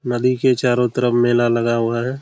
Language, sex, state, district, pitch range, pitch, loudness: Hindi, male, Jharkhand, Jamtara, 120-125 Hz, 120 Hz, -17 LUFS